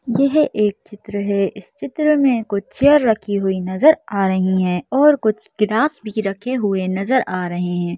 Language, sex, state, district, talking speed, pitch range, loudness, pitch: Hindi, female, Madhya Pradesh, Bhopal, 190 wpm, 190-260 Hz, -18 LUFS, 210 Hz